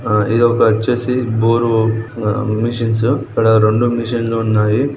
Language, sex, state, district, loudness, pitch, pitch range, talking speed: Telugu, male, Telangana, Nalgonda, -15 LUFS, 115 Hz, 110-120 Hz, 145 wpm